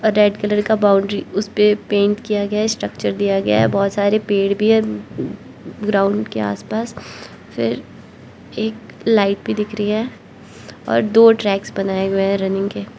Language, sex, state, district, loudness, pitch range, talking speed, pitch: Hindi, female, Arunachal Pradesh, Lower Dibang Valley, -18 LUFS, 195-215 Hz, 165 wpm, 205 Hz